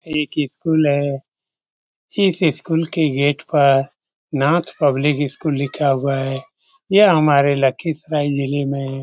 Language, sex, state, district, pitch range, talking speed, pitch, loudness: Hindi, male, Bihar, Lakhisarai, 140-160 Hz, 135 wpm, 145 Hz, -18 LUFS